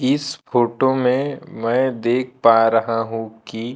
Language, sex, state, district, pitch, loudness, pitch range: Hindi, male, Madhya Pradesh, Bhopal, 120 Hz, -19 LUFS, 115-130 Hz